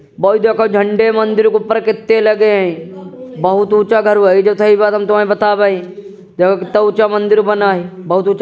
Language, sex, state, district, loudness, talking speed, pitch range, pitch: Hindi, male, Uttar Pradesh, Jyotiba Phule Nagar, -12 LUFS, 205 wpm, 195-215 Hz, 210 Hz